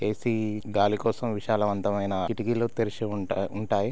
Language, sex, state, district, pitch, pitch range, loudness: Telugu, male, Telangana, Karimnagar, 105 Hz, 100-115 Hz, -28 LUFS